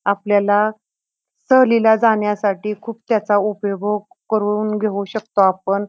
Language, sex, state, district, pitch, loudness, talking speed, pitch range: Marathi, female, Maharashtra, Pune, 210 Hz, -18 LUFS, 100 wpm, 205-220 Hz